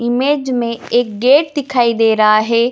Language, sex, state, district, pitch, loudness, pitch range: Hindi, female, Bihar, Jamui, 240 Hz, -14 LUFS, 230-265 Hz